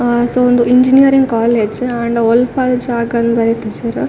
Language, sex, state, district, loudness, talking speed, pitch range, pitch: Tulu, female, Karnataka, Dakshina Kannada, -13 LUFS, 145 wpm, 235-250 Hz, 240 Hz